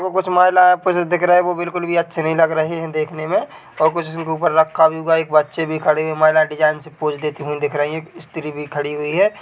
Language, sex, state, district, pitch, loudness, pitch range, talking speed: Hindi, male, Chhattisgarh, Bilaspur, 160 Hz, -18 LUFS, 155-175 Hz, 280 wpm